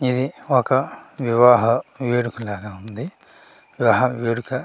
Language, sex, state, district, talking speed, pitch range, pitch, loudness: Telugu, male, Andhra Pradesh, Manyam, 90 wpm, 115-130 Hz, 120 Hz, -19 LUFS